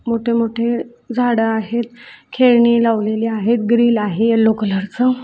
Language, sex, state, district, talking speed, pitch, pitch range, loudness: Marathi, female, Maharashtra, Sindhudurg, 125 wpm, 230 Hz, 220-240 Hz, -16 LUFS